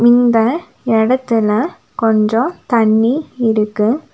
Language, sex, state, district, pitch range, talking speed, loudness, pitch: Tamil, female, Tamil Nadu, Nilgiris, 220-245 Hz, 70 wpm, -15 LUFS, 230 Hz